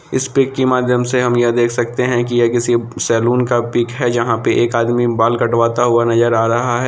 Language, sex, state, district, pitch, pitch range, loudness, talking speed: Hindi, female, Bihar, Samastipur, 120 Hz, 115-125 Hz, -15 LUFS, 235 wpm